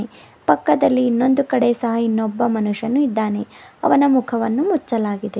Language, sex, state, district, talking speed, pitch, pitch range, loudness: Kannada, female, Karnataka, Bidar, 110 wpm, 235 Hz, 220-260 Hz, -18 LUFS